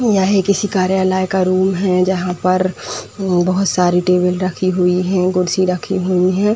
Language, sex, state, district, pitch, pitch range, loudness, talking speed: Hindi, female, Uttar Pradesh, Etah, 185 Hz, 180-190 Hz, -16 LUFS, 175 wpm